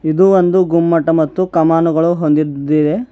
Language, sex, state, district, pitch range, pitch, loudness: Kannada, male, Karnataka, Bidar, 155-175 Hz, 165 Hz, -13 LUFS